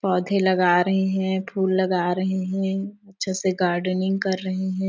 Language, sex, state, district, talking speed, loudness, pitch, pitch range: Hindi, female, Chhattisgarh, Sarguja, 185 wpm, -23 LUFS, 190 Hz, 185-190 Hz